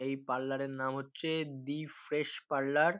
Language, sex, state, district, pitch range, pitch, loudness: Bengali, male, West Bengal, North 24 Parganas, 135-150 Hz, 140 Hz, -35 LUFS